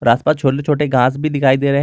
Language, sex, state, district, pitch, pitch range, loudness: Hindi, male, Jharkhand, Garhwa, 140 Hz, 130-150 Hz, -15 LUFS